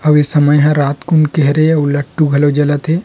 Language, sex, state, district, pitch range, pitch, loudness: Chhattisgarhi, male, Chhattisgarh, Rajnandgaon, 145-155 Hz, 150 Hz, -12 LUFS